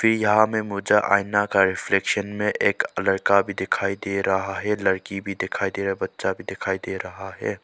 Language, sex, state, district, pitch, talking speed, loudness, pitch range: Hindi, male, Arunachal Pradesh, Lower Dibang Valley, 100 Hz, 195 wpm, -23 LUFS, 95-105 Hz